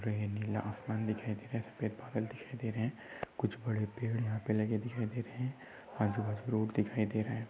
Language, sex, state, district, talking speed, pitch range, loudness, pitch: Hindi, male, Maharashtra, Aurangabad, 210 wpm, 110-115 Hz, -37 LUFS, 110 Hz